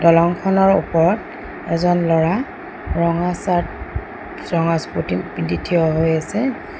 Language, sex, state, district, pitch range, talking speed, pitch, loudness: Assamese, female, Assam, Sonitpur, 165-195 Hz, 105 wpm, 175 Hz, -19 LUFS